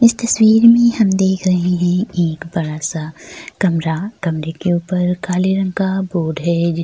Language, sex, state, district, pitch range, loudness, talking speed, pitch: Hindi, female, Bihar, Kishanganj, 170-195 Hz, -16 LUFS, 165 wpm, 180 Hz